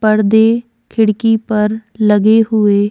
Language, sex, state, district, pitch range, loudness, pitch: Hindi, female, Goa, North and South Goa, 210-225 Hz, -13 LUFS, 220 Hz